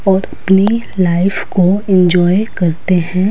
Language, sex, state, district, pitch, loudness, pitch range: Hindi, female, Himachal Pradesh, Shimla, 190 Hz, -13 LUFS, 180-195 Hz